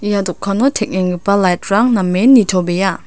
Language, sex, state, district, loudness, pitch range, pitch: Garo, female, Meghalaya, South Garo Hills, -14 LUFS, 180-215 Hz, 195 Hz